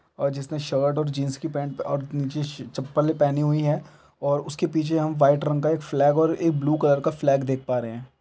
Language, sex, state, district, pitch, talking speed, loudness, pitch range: Hindi, male, Chhattisgarh, Balrampur, 145 Hz, 250 wpm, -24 LUFS, 140-155 Hz